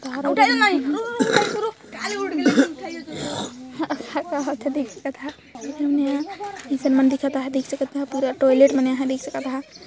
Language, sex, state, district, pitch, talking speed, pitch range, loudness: Hindi, female, Chhattisgarh, Jashpur, 280 Hz, 80 wpm, 270-295 Hz, -22 LUFS